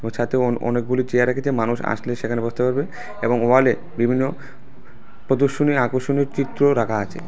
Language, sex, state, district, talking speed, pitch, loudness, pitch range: Bengali, male, Tripura, West Tripura, 150 wpm, 125 Hz, -20 LUFS, 120-135 Hz